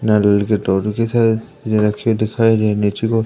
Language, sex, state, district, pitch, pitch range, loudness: Hindi, male, Madhya Pradesh, Umaria, 110 Hz, 105-115 Hz, -16 LUFS